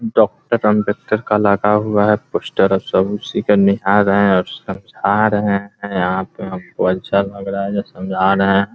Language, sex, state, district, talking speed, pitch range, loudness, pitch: Hindi, male, Bihar, Muzaffarpur, 205 wpm, 95-105 Hz, -16 LUFS, 100 Hz